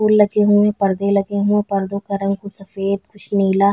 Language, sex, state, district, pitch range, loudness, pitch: Hindi, female, Chhattisgarh, Bilaspur, 195-205 Hz, -18 LUFS, 200 Hz